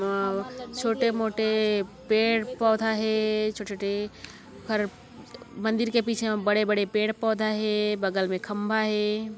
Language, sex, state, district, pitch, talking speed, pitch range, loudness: Chhattisgarhi, female, Chhattisgarh, Kabirdham, 215 Hz, 115 wpm, 210-225 Hz, -26 LUFS